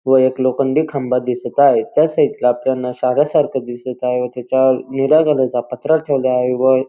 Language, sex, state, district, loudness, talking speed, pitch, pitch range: Marathi, male, Maharashtra, Dhule, -16 LUFS, 200 wpm, 130 Hz, 125-140 Hz